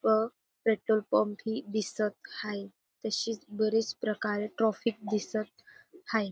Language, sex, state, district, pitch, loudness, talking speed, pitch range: Marathi, female, Maharashtra, Dhule, 215 Hz, -32 LUFS, 115 wpm, 210-225 Hz